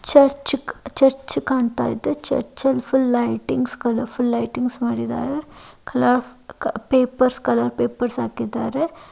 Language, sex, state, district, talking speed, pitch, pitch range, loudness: Kannada, female, Karnataka, Dakshina Kannada, 100 wpm, 250 Hz, 235-270 Hz, -21 LUFS